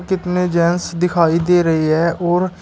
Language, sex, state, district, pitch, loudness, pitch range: Hindi, male, Uttar Pradesh, Shamli, 175 Hz, -16 LUFS, 170-180 Hz